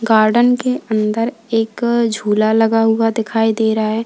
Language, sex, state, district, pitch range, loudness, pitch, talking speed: Hindi, female, Uttar Pradesh, Lalitpur, 220-230 Hz, -15 LUFS, 225 Hz, 160 wpm